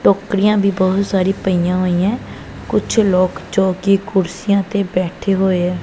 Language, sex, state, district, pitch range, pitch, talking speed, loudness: Punjabi, female, Punjab, Pathankot, 185-200 Hz, 190 Hz, 145 wpm, -16 LUFS